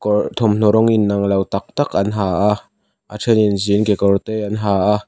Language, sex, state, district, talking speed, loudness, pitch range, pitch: Mizo, male, Mizoram, Aizawl, 210 wpm, -17 LUFS, 100-110 Hz, 105 Hz